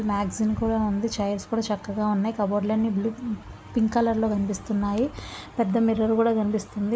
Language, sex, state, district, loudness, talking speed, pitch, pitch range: Telugu, female, Andhra Pradesh, Visakhapatnam, -25 LUFS, 165 wpm, 215 Hz, 205-225 Hz